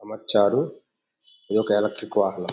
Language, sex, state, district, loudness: Telugu, male, Andhra Pradesh, Anantapur, -23 LUFS